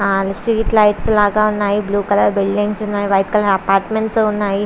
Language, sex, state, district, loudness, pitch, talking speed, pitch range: Telugu, female, Andhra Pradesh, Visakhapatnam, -16 LUFS, 205 Hz, 140 wpm, 200-215 Hz